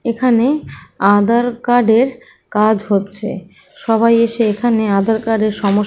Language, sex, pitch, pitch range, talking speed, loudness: Awadhi, female, 225 Hz, 210-235 Hz, 145 wpm, -15 LUFS